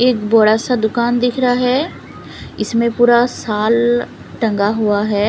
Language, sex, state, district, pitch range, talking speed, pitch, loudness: Hindi, female, Punjab, Fazilka, 215-245 Hz, 150 wpm, 235 Hz, -15 LUFS